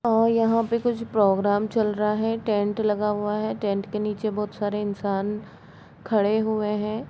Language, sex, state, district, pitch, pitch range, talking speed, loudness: Hindi, female, Uttar Pradesh, Budaun, 210 Hz, 205-220 Hz, 175 wpm, -24 LUFS